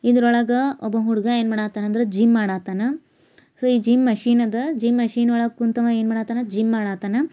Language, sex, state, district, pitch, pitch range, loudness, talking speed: Kannada, female, Karnataka, Bijapur, 235 Hz, 225-240 Hz, -20 LUFS, 190 wpm